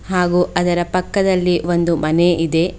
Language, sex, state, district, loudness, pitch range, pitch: Kannada, female, Karnataka, Bidar, -17 LUFS, 170-180 Hz, 175 Hz